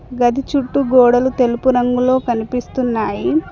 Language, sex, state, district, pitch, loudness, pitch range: Telugu, female, Telangana, Mahabubabad, 250 Hz, -16 LUFS, 240-260 Hz